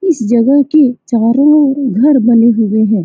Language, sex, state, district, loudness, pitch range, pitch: Hindi, female, Bihar, Saran, -10 LUFS, 230-285 Hz, 245 Hz